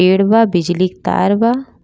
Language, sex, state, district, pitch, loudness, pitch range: Bhojpuri, female, Uttar Pradesh, Gorakhpur, 195 Hz, -14 LUFS, 185-225 Hz